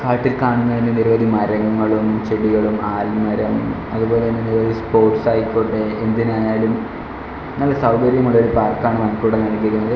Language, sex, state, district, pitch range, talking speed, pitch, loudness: Malayalam, male, Kerala, Kollam, 110-115 Hz, 100 wpm, 110 Hz, -17 LUFS